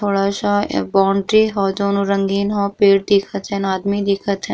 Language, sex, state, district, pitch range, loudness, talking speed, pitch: Bhojpuri, female, Bihar, East Champaran, 195-200 Hz, -17 LUFS, 185 wpm, 200 Hz